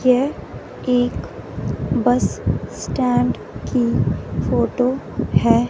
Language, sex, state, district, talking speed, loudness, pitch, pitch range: Hindi, female, Punjab, Fazilka, 75 wpm, -20 LUFS, 250 Hz, 245-255 Hz